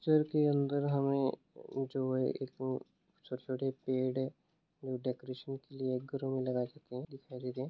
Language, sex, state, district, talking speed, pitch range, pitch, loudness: Hindi, male, Bihar, Muzaffarpur, 195 wpm, 130-140 Hz, 130 Hz, -36 LUFS